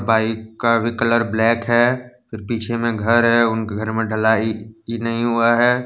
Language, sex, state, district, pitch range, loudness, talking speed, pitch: Hindi, male, Jharkhand, Deoghar, 110-120 Hz, -18 LUFS, 195 wpm, 115 Hz